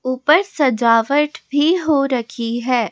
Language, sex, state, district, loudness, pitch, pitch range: Hindi, female, Rajasthan, Jaipur, -17 LUFS, 260 Hz, 235-295 Hz